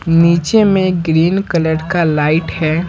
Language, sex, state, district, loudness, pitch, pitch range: Hindi, male, Bihar, Patna, -13 LUFS, 170 Hz, 160-180 Hz